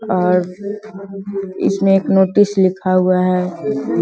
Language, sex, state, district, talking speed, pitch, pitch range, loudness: Hindi, female, Bihar, Vaishali, 120 wpm, 190 Hz, 185-195 Hz, -16 LUFS